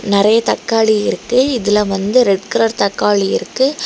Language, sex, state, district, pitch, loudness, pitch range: Tamil, female, Tamil Nadu, Kanyakumari, 215 Hz, -14 LUFS, 200-240 Hz